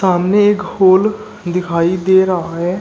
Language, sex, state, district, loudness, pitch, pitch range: Hindi, male, Uttar Pradesh, Shamli, -14 LUFS, 185 Hz, 175-200 Hz